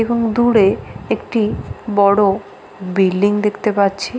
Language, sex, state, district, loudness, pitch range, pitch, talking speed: Bengali, female, West Bengal, Paschim Medinipur, -16 LUFS, 200-225 Hz, 205 Hz, 100 wpm